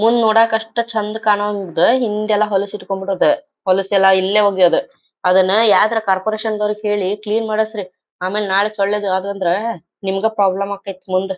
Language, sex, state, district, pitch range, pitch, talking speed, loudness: Kannada, female, Karnataka, Dharwad, 190-215 Hz, 205 Hz, 155 wpm, -17 LUFS